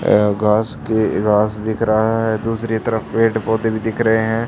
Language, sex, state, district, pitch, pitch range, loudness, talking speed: Hindi, male, Haryana, Charkhi Dadri, 110 Hz, 110-115 Hz, -17 LUFS, 200 wpm